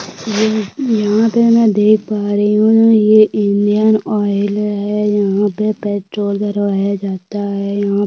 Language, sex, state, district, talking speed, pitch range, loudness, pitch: Hindi, female, Uttarakhand, Tehri Garhwal, 150 wpm, 205-215 Hz, -14 LUFS, 210 Hz